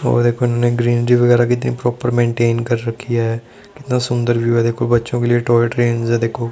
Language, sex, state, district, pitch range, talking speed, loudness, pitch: Hindi, male, Chandigarh, Chandigarh, 115-120 Hz, 210 wpm, -16 LUFS, 120 Hz